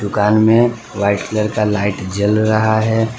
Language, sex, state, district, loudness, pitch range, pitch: Hindi, male, Gujarat, Valsad, -15 LUFS, 100-110 Hz, 105 Hz